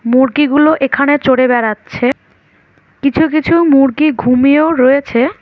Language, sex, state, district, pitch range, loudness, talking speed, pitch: Bengali, female, West Bengal, Alipurduar, 255-300 Hz, -11 LUFS, 100 wpm, 275 Hz